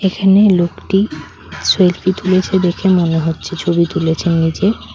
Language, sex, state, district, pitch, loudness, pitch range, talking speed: Bengali, female, West Bengal, Cooch Behar, 175 Hz, -14 LUFS, 165-190 Hz, 120 wpm